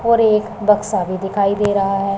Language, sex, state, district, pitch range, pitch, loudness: Hindi, male, Punjab, Pathankot, 195-215 Hz, 205 Hz, -17 LUFS